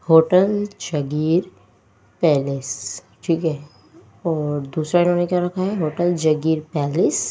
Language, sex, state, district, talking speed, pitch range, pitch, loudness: Hindi, female, Delhi, New Delhi, 115 wpm, 145-175 Hz, 160 Hz, -20 LUFS